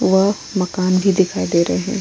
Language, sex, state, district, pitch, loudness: Hindi, female, Uttar Pradesh, Hamirpur, 185 Hz, -17 LUFS